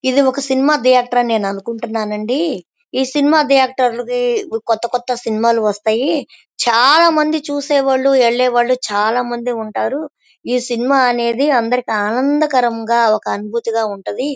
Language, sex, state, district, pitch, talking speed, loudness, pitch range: Telugu, female, Andhra Pradesh, Krishna, 250 Hz, 140 wpm, -15 LUFS, 230-280 Hz